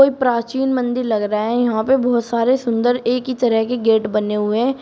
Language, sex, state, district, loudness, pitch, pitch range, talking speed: Hindi, female, Uttar Pradesh, Shamli, -18 LUFS, 240 Hz, 225-250 Hz, 225 wpm